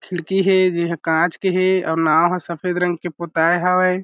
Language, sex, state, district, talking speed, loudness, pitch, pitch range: Chhattisgarhi, male, Chhattisgarh, Jashpur, 210 wpm, -18 LUFS, 180 Hz, 170-185 Hz